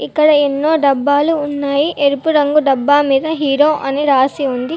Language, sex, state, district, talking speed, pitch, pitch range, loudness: Telugu, female, Telangana, Komaram Bheem, 150 wpm, 285 Hz, 280-300 Hz, -14 LUFS